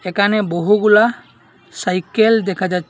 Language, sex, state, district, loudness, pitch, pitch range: Bengali, male, Assam, Hailakandi, -15 LUFS, 200 Hz, 185-215 Hz